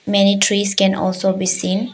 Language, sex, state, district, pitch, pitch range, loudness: English, female, Arunachal Pradesh, Papum Pare, 195 Hz, 190-200 Hz, -16 LUFS